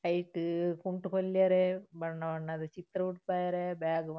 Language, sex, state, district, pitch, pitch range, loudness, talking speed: Tulu, female, Karnataka, Dakshina Kannada, 180 Hz, 165-185 Hz, -33 LUFS, 130 wpm